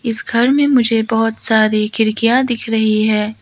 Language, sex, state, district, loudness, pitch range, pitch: Hindi, female, Arunachal Pradesh, Lower Dibang Valley, -14 LUFS, 215-235 Hz, 225 Hz